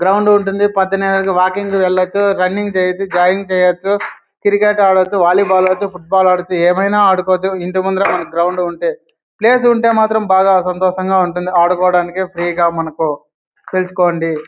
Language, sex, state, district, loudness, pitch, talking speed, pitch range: Telugu, male, Andhra Pradesh, Anantapur, -14 LUFS, 185 Hz, 125 wpm, 180-195 Hz